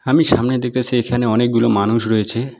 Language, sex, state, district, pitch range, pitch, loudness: Bengali, male, West Bengal, Alipurduar, 115-125 Hz, 120 Hz, -16 LUFS